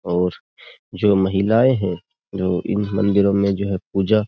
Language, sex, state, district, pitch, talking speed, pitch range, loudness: Hindi, male, Uttar Pradesh, Jyotiba Phule Nagar, 100 Hz, 170 wpm, 95-105 Hz, -19 LUFS